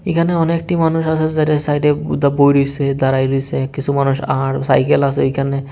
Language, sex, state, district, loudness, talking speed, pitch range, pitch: Bengali, male, Tripura, West Tripura, -16 LUFS, 180 wpm, 135-155 Hz, 140 Hz